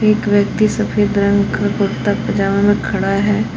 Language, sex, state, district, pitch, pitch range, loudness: Hindi, female, Jharkhand, Palamu, 205 Hz, 200-210 Hz, -16 LUFS